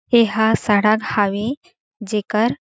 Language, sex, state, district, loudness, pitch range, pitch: Chhattisgarhi, female, Chhattisgarh, Jashpur, -18 LUFS, 210-235 Hz, 220 Hz